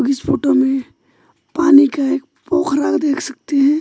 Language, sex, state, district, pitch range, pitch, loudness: Hindi, male, West Bengal, Alipurduar, 275-305 Hz, 285 Hz, -16 LUFS